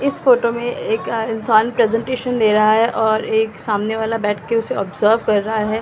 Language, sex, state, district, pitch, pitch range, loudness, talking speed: Hindi, female, Delhi, New Delhi, 220 Hz, 215-230 Hz, -17 LUFS, 205 wpm